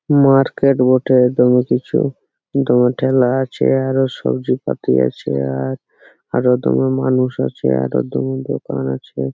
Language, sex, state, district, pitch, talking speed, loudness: Bengali, male, West Bengal, Purulia, 70 Hz, 115 wpm, -16 LUFS